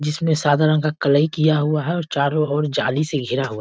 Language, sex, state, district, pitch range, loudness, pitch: Hindi, male, Bihar, East Champaran, 145-155 Hz, -19 LUFS, 150 Hz